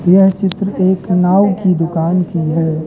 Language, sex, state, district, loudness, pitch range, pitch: Hindi, male, Madhya Pradesh, Katni, -14 LUFS, 165-195 Hz, 180 Hz